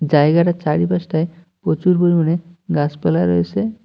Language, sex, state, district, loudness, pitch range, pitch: Bengali, male, West Bengal, Cooch Behar, -18 LUFS, 150-175 Hz, 170 Hz